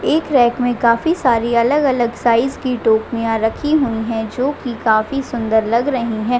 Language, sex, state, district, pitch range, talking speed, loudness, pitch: Hindi, female, Chhattisgarh, Raigarh, 230-265 Hz, 170 wpm, -17 LUFS, 240 Hz